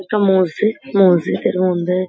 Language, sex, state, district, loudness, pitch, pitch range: Bengali, female, West Bengal, Kolkata, -16 LUFS, 185 Hz, 185-205 Hz